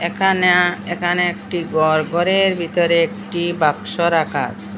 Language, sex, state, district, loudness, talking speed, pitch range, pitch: Bengali, female, Assam, Hailakandi, -17 LUFS, 125 wpm, 160-180 Hz, 175 Hz